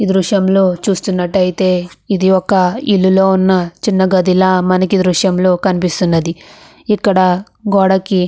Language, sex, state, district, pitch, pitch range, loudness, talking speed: Telugu, female, Andhra Pradesh, Krishna, 190 Hz, 180-195 Hz, -13 LUFS, 145 wpm